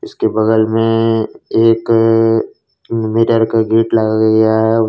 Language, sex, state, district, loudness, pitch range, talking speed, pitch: Hindi, male, Jharkhand, Ranchi, -13 LUFS, 110-115 Hz, 120 wpm, 115 Hz